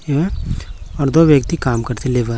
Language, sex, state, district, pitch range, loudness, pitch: Hindi, male, Chhattisgarh, Raipur, 115-150 Hz, -16 LUFS, 125 Hz